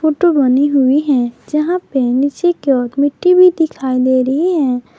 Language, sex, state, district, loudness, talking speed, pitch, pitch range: Hindi, female, Jharkhand, Garhwa, -14 LUFS, 180 wpm, 280 Hz, 260-320 Hz